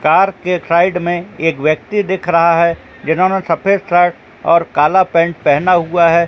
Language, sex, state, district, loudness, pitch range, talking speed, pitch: Hindi, male, Jharkhand, Jamtara, -14 LUFS, 165-185 Hz, 170 wpm, 170 Hz